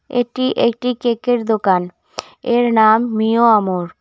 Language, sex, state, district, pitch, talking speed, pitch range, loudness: Bengali, female, West Bengal, Cooch Behar, 230 Hz, 120 wpm, 215-245 Hz, -16 LUFS